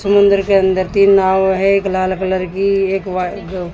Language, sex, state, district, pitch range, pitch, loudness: Hindi, female, Haryana, Jhajjar, 185-195 Hz, 190 Hz, -14 LUFS